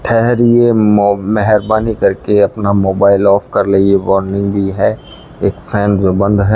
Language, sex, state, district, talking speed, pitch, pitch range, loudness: Hindi, male, Rajasthan, Bikaner, 165 wpm, 100 Hz, 100-110 Hz, -12 LUFS